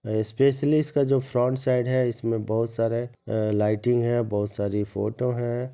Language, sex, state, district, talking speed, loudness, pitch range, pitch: Hindi, male, Bihar, Madhepura, 165 wpm, -25 LUFS, 110-125 Hz, 120 Hz